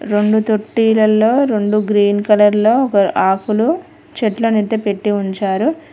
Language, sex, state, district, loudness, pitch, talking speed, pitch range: Telugu, female, Telangana, Mahabubabad, -15 LUFS, 215 Hz, 110 wpm, 210-225 Hz